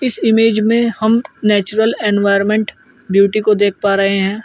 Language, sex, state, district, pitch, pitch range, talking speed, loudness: Hindi, male, Uttar Pradesh, Jyotiba Phule Nagar, 215 Hz, 200-225 Hz, 160 wpm, -14 LUFS